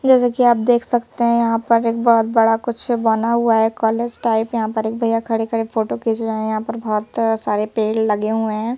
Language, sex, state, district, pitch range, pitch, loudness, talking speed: Hindi, female, Madhya Pradesh, Bhopal, 220-235 Hz, 225 Hz, -18 LUFS, 230 wpm